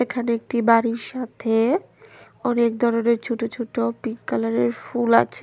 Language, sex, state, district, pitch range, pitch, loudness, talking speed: Bengali, female, Tripura, West Tripura, 230-240 Hz, 235 Hz, -22 LUFS, 130 wpm